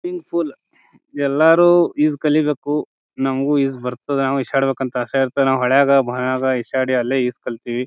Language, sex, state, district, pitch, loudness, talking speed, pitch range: Kannada, male, Karnataka, Bijapur, 135 Hz, -18 LUFS, 175 wpm, 130-150 Hz